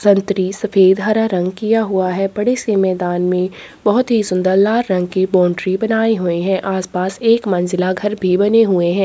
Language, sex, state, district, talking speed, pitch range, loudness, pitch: Hindi, female, Chhattisgarh, Korba, 185 wpm, 185-215 Hz, -16 LUFS, 190 Hz